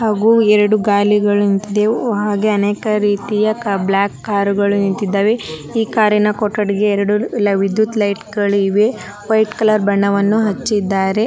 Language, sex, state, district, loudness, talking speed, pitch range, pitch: Kannada, male, Karnataka, Dharwad, -15 LUFS, 120 wpm, 200-215 Hz, 210 Hz